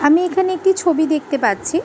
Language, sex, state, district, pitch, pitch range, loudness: Bengali, female, West Bengal, Malda, 340 Hz, 310-370 Hz, -17 LUFS